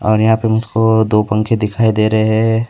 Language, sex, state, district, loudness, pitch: Hindi, male, West Bengal, Alipurduar, -14 LUFS, 110 Hz